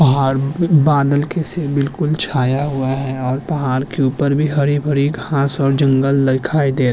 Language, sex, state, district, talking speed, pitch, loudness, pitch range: Hindi, male, Uttarakhand, Tehri Garhwal, 155 wpm, 140 Hz, -16 LUFS, 135-145 Hz